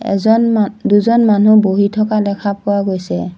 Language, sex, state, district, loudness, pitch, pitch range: Assamese, female, Assam, Sonitpur, -13 LUFS, 205 Hz, 200-215 Hz